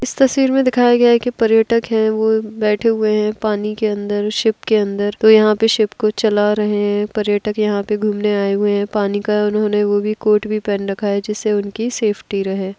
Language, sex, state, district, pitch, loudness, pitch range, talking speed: Hindi, female, Bihar, Kishanganj, 210 Hz, -16 LUFS, 205-220 Hz, 225 wpm